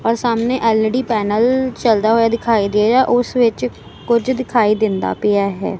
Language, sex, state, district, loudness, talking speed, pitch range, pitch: Punjabi, female, Punjab, Kapurthala, -16 LUFS, 175 wpm, 215-245 Hz, 230 Hz